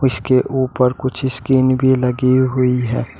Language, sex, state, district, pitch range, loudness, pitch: Hindi, male, Uttar Pradesh, Shamli, 125-130 Hz, -16 LUFS, 130 Hz